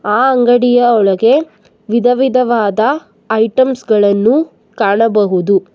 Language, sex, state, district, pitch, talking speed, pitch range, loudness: Kannada, female, Karnataka, Bangalore, 225 Hz, 85 wpm, 210-245 Hz, -12 LUFS